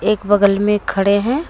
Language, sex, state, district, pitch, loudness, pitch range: Hindi, female, Jharkhand, Deoghar, 205 Hz, -15 LUFS, 200-215 Hz